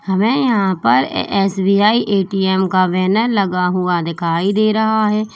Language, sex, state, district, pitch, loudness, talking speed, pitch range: Hindi, female, Uttar Pradesh, Saharanpur, 195 Hz, -15 LUFS, 145 wpm, 185-215 Hz